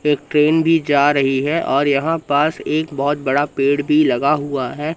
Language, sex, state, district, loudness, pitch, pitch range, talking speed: Hindi, male, Madhya Pradesh, Katni, -17 LUFS, 145 Hz, 140-155 Hz, 205 wpm